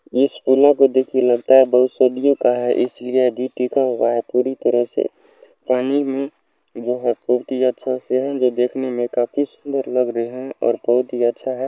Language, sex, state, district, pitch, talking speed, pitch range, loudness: Maithili, male, Bihar, Supaul, 125 Hz, 185 wpm, 125-130 Hz, -18 LUFS